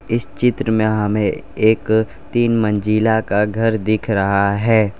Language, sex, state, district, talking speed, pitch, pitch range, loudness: Hindi, male, Gujarat, Valsad, 145 wpm, 110 Hz, 105-115 Hz, -17 LUFS